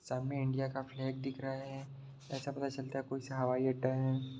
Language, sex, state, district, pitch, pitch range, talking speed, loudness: Hindi, male, Bihar, Sitamarhi, 135 Hz, 130-135 Hz, 220 wpm, -38 LUFS